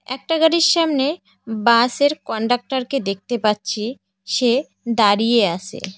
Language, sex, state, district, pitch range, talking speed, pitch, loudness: Bengali, female, West Bengal, Cooch Behar, 210-275 Hz, 100 wpm, 240 Hz, -18 LUFS